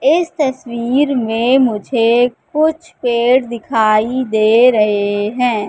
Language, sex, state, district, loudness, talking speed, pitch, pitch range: Hindi, female, Madhya Pradesh, Katni, -14 LUFS, 105 wpm, 240 Hz, 225-265 Hz